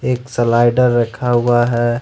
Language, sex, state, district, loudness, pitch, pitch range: Hindi, male, Jharkhand, Ranchi, -15 LUFS, 120 Hz, 120-125 Hz